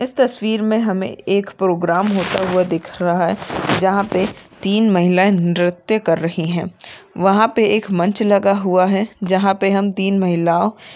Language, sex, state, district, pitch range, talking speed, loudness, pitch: Hindi, female, Maharashtra, Nagpur, 175-205 Hz, 180 wpm, -17 LUFS, 190 Hz